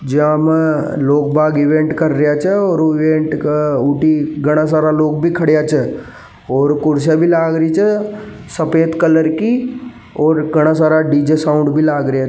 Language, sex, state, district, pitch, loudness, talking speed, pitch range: Marwari, male, Rajasthan, Nagaur, 155 Hz, -14 LUFS, 175 wpm, 150-160 Hz